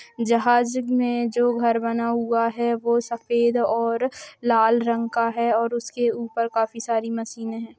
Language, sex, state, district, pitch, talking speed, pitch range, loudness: Hindi, female, Jharkhand, Sahebganj, 235 Hz, 160 wpm, 230-240 Hz, -22 LUFS